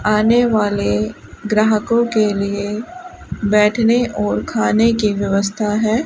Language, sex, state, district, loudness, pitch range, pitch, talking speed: Hindi, female, Rajasthan, Bikaner, -17 LUFS, 200-225 Hz, 210 Hz, 110 wpm